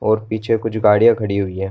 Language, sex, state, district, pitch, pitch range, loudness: Hindi, male, Bihar, Darbhanga, 110 Hz, 100-110 Hz, -17 LUFS